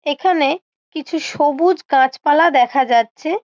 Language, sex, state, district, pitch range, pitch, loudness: Bengali, female, West Bengal, Malda, 270-340 Hz, 295 Hz, -16 LUFS